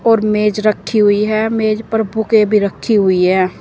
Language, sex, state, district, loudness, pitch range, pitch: Hindi, female, Uttar Pradesh, Saharanpur, -14 LUFS, 205-220 Hz, 215 Hz